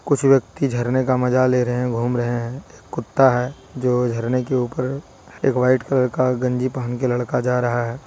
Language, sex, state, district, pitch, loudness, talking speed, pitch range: Hindi, male, Jharkhand, Deoghar, 125 Hz, -20 LUFS, 215 wpm, 120-130 Hz